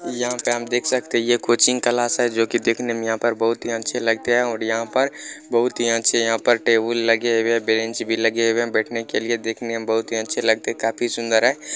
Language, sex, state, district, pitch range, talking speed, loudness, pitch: Maithili, male, Bihar, Purnia, 115-120 Hz, 265 wpm, -20 LUFS, 115 Hz